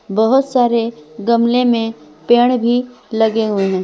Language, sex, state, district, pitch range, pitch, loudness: Hindi, female, Jharkhand, Palamu, 210-245 Hz, 230 Hz, -15 LUFS